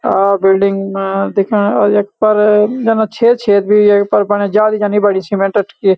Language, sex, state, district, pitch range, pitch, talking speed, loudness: Garhwali, male, Uttarakhand, Uttarkashi, 195-210 Hz, 205 Hz, 190 wpm, -12 LUFS